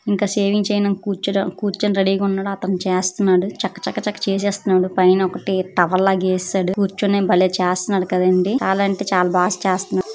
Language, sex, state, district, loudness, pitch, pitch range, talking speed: Telugu, female, Andhra Pradesh, Chittoor, -19 LUFS, 195 Hz, 185-200 Hz, 155 wpm